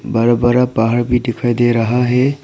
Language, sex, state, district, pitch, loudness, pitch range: Hindi, male, Arunachal Pradesh, Papum Pare, 120 Hz, -15 LUFS, 120-125 Hz